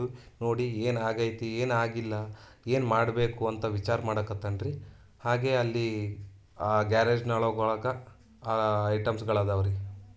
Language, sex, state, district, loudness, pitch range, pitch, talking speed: Kannada, male, Karnataka, Dharwad, -29 LUFS, 105-115 Hz, 110 Hz, 100 wpm